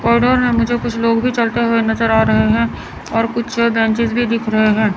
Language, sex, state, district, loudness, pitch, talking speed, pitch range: Hindi, female, Chandigarh, Chandigarh, -15 LUFS, 230 Hz, 215 wpm, 225-235 Hz